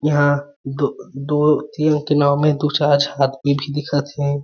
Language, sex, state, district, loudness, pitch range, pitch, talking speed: Chhattisgarhi, male, Chhattisgarh, Jashpur, -18 LUFS, 140-150 Hz, 145 Hz, 190 wpm